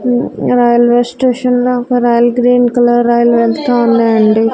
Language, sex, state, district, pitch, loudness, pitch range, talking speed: Telugu, female, Andhra Pradesh, Annamaya, 240 Hz, -11 LUFS, 235-245 Hz, 130 wpm